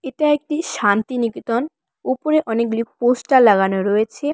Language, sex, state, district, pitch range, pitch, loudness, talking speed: Bengali, female, West Bengal, Cooch Behar, 225-295 Hz, 245 Hz, -18 LUFS, 110 wpm